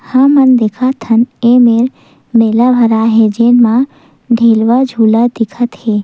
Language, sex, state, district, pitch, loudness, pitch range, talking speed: Chhattisgarhi, female, Chhattisgarh, Sukma, 235 Hz, -10 LUFS, 225-245 Hz, 130 wpm